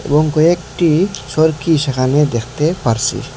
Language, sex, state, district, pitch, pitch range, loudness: Bengali, male, Assam, Hailakandi, 150 Hz, 130-160 Hz, -15 LUFS